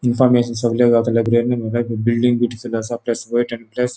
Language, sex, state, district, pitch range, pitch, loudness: Konkani, male, Goa, North and South Goa, 115-120 Hz, 120 Hz, -18 LUFS